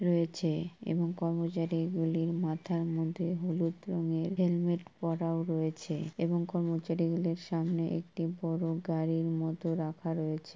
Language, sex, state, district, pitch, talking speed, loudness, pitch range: Bengali, female, West Bengal, Purulia, 165 Hz, 120 wpm, -33 LUFS, 165-170 Hz